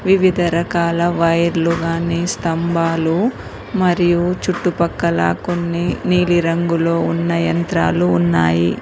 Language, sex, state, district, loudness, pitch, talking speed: Telugu, female, Telangana, Mahabubabad, -17 LUFS, 170 Hz, 95 wpm